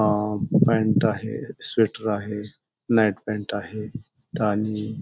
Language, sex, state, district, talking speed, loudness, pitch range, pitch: Marathi, male, Maharashtra, Pune, 120 wpm, -24 LUFS, 105-110 Hz, 105 Hz